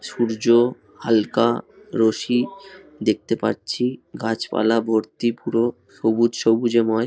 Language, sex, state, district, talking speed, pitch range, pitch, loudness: Bengali, male, West Bengal, Dakshin Dinajpur, 85 wpm, 110-120 Hz, 115 Hz, -21 LUFS